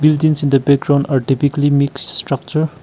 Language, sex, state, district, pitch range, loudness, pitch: English, male, Nagaland, Kohima, 140-155 Hz, -15 LUFS, 145 Hz